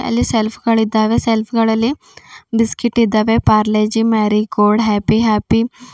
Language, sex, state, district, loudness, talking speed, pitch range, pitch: Kannada, female, Karnataka, Bidar, -15 LUFS, 120 wpm, 215-230 Hz, 225 Hz